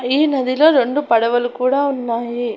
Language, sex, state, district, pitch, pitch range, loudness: Telugu, female, Andhra Pradesh, Annamaya, 255 Hz, 240-280 Hz, -16 LUFS